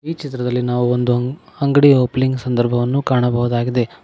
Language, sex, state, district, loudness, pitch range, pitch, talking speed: Kannada, male, Karnataka, Koppal, -17 LUFS, 120-135 Hz, 125 Hz, 120 wpm